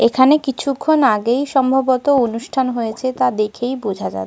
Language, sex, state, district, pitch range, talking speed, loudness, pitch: Bengali, female, Jharkhand, Sahebganj, 230-270 Hz, 140 wpm, -17 LUFS, 255 Hz